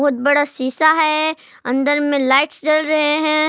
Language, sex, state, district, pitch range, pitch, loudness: Hindi, female, Jharkhand, Palamu, 280-310 Hz, 295 Hz, -16 LUFS